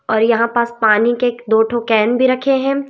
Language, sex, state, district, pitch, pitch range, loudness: Hindi, female, Madhya Pradesh, Umaria, 235 Hz, 225-250 Hz, -15 LUFS